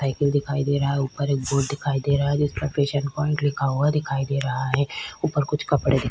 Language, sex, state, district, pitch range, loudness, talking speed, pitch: Hindi, female, Uttar Pradesh, Hamirpur, 135-145 Hz, -23 LUFS, 245 wpm, 140 Hz